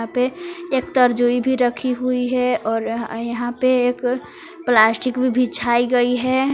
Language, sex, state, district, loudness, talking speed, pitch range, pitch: Hindi, female, Jharkhand, Palamu, -19 LUFS, 145 wpm, 240-255 Hz, 250 Hz